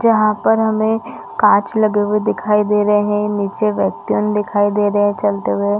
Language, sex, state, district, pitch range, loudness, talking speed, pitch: Hindi, female, Chhattisgarh, Bastar, 205-215 Hz, -16 LUFS, 195 wpm, 210 Hz